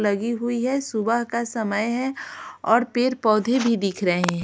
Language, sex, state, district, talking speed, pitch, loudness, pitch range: Hindi, female, Bihar, Patna, 190 wpm, 230 Hz, -23 LUFS, 215-245 Hz